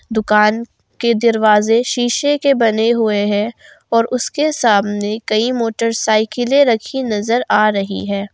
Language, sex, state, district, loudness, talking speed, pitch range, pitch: Hindi, female, Jharkhand, Garhwa, -15 LUFS, 130 wpm, 215-245 Hz, 230 Hz